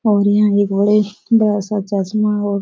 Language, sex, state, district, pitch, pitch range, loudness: Hindi, female, Bihar, Jahanabad, 205 Hz, 200-210 Hz, -16 LUFS